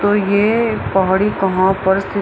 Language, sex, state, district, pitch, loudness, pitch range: Hindi, female, Bihar, Araria, 195 Hz, -15 LUFS, 190-205 Hz